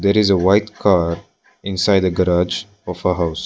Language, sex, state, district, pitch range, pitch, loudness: English, male, Arunachal Pradesh, Lower Dibang Valley, 90-100 Hz, 95 Hz, -17 LUFS